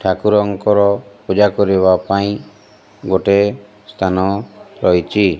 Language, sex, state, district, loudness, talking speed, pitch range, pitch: Odia, male, Odisha, Malkangiri, -15 LUFS, 80 wpm, 95-105 Hz, 100 Hz